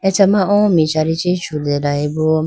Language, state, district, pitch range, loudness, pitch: Idu Mishmi, Arunachal Pradesh, Lower Dibang Valley, 155-195 Hz, -16 LUFS, 160 Hz